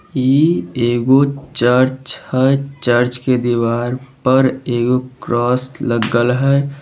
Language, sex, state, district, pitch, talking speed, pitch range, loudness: Maithili, male, Bihar, Samastipur, 125 Hz, 105 wpm, 120-135 Hz, -16 LUFS